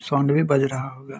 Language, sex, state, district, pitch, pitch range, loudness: Hindi, male, Bihar, Saharsa, 135 Hz, 135-140 Hz, -21 LUFS